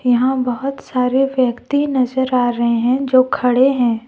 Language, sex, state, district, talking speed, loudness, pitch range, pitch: Hindi, female, Jharkhand, Deoghar, 160 wpm, -16 LUFS, 245-265 Hz, 255 Hz